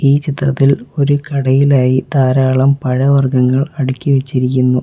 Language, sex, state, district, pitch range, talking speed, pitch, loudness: Malayalam, male, Kerala, Kollam, 130-140 Hz, 85 wpm, 135 Hz, -13 LUFS